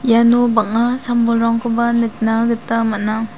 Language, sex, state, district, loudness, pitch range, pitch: Garo, female, Meghalaya, South Garo Hills, -16 LUFS, 225-235 Hz, 230 Hz